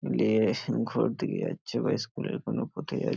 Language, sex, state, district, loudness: Bengali, male, West Bengal, Paschim Medinipur, -30 LUFS